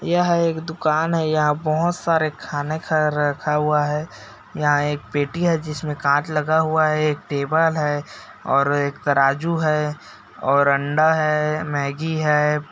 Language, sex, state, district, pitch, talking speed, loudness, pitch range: Hindi, male, Chhattisgarh, Raigarh, 150 Hz, 150 wpm, -20 LUFS, 145-160 Hz